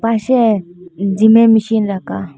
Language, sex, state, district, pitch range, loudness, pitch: Bengali, female, Assam, Hailakandi, 195-225 Hz, -13 LUFS, 220 Hz